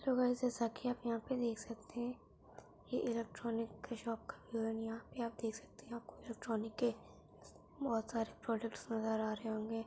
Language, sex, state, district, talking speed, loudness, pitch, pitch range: Hindi, female, Bihar, Samastipur, 150 wpm, -41 LUFS, 230 Hz, 225-240 Hz